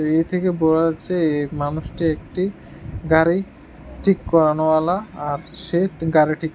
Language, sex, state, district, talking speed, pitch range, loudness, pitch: Bengali, male, Tripura, West Tripura, 130 wpm, 155-180 Hz, -20 LUFS, 160 Hz